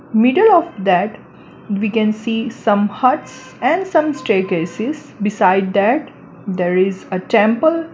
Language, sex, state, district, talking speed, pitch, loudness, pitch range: English, female, Gujarat, Valsad, 130 wpm, 220 Hz, -16 LUFS, 195-285 Hz